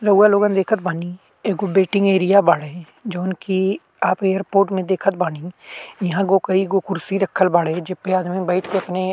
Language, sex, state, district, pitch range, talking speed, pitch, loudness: Bhojpuri, male, Uttar Pradesh, Ghazipur, 180-195 Hz, 170 wpm, 190 Hz, -19 LUFS